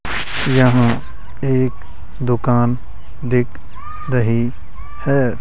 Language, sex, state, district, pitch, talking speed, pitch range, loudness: Hindi, male, Rajasthan, Jaipur, 120 Hz, 65 wpm, 100-130 Hz, -18 LUFS